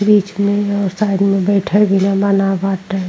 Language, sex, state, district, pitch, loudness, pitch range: Bhojpuri, female, Uttar Pradesh, Ghazipur, 195 Hz, -15 LUFS, 195-200 Hz